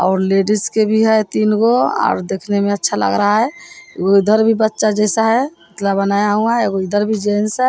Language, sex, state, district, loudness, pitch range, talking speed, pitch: Hindi, female, Bihar, Vaishali, -15 LUFS, 200-220 Hz, 225 wpm, 210 Hz